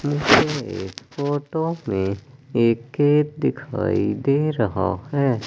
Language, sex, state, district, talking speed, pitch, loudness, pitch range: Hindi, male, Madhya Pradesh, Katni, 90 wpm, 135 Hz, -22 LUFS, 110-145 Hz